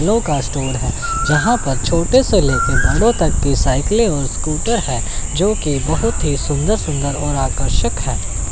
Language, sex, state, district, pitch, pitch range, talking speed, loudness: Hindi, male, Chandigarh, Chandigarh, 145 Hz, 130-205 Hz, 170 wpm, -17 LUFS